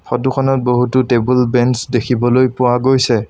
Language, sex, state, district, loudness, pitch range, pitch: Assamese, male, Assam, Sonitpur, -14 LUFS, 120-130 Hz, 125 Hz